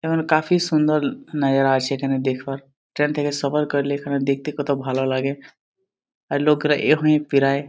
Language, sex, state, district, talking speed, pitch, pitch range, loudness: Bengali, male, Jharkhand, Jamtara, 155 wpm, 140 Hz, 135-150 Hz, -21 LUFS